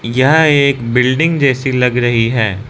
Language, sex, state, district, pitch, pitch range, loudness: Hindi, male, Arunachal Pradesh, Lower Dibang Valley, 125 Hz, 120-140 Hz, -12 LUFS